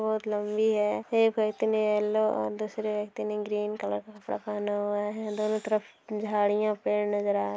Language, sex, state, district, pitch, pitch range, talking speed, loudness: Hindi, female, Bihar, Darbhanga, 210 Hz, 210-215 Hz, 175 wpm, -29 LUFS